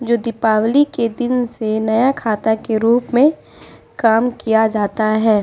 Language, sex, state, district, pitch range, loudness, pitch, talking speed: Hindi, female, Uttar Pradesh, Muzaffarnagar, 220-245 Hz, -16 LUFS, 225 Hz, 155 wpm